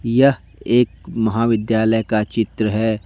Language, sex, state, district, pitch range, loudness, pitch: Hindi, male, Jharkhand, Deoghar, 110-115 Hz, -18 LUFS, 110 Hz